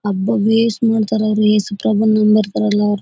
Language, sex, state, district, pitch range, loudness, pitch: Kannada, female, Karnataka, Bellary, 210-220 Hz, -15 LUFS, 215 Hz